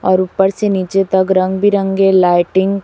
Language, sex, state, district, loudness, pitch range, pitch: Hindi, female, Chhattisgarh, Raipur, -13 LUFS, 185-195 Hz, 190 Hz